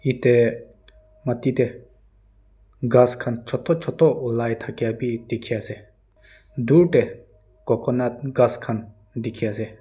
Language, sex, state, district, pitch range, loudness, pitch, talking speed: Nagamese, male, Nagaland, Dimapur, 105-125 Hz, -22 LUFS, 120 Hz, 115 wpm